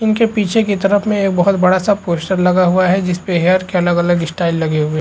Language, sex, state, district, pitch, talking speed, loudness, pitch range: Hindi, female, Chhattisgarh, Rajnandgaon, 185 Hz, 275 wpm, -14 LUFS, 175-200 Hz